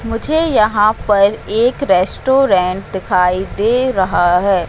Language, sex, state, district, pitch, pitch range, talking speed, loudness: Hindi, female, Madhya Pradesh, Katni, 205 Hz, 185-235 Hz, 115 wpm, -14 LUFS